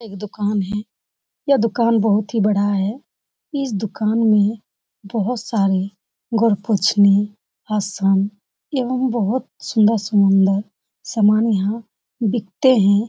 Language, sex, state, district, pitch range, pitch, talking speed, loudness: Hindi, female, Uttar Pradesh, Etah, 200-230 Hz, 210 Hz, 105 wpm, -19 LUFS